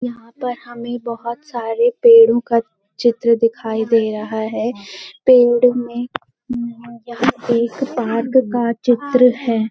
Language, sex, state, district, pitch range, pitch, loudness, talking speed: Hindi, female, Uttarakhand, Uttarkashi, 230-245 Hz, 235 Hz, -16 LUFS, 130 wpm